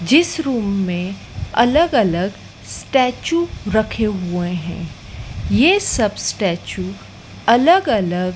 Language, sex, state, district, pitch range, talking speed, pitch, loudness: Hindi, female, Madhya Pradesh, Dhar, 180-260 Hz, 110 wpm, 205 Hz, -18 LUFS